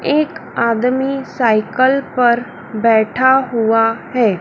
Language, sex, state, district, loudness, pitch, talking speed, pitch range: Hindi, female, Madhya Pradesh, Dhar, -15 LUFS, 245 Hz, 95 wpm, 225-265 Hz